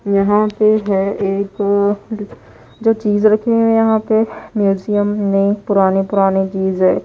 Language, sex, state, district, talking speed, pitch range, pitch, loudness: Hindi, female, Odisha, Nuapada, 155 wpm, 195-215 Hz, 205 Hz, -15 LUFS